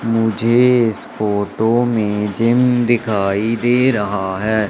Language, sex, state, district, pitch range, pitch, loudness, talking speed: Hindi, male, Madhya Pradesh, Katni, 105-120 Hz, 110 Hz, -16 LUFS, 115 wpm